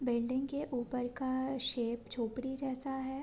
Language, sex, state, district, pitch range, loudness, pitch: Hindi, female, Uttarakhand, Tehri Garhwal, 245-265 Hz, -37 LUFS, 260 Hz